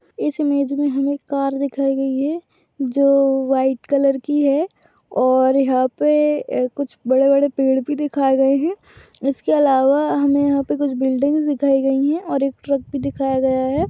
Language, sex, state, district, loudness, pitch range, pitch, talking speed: Hindi, female, Maharashtra, Solapur, -18 LUFS, 270-285 Hz, 275 Hz, 175 wpm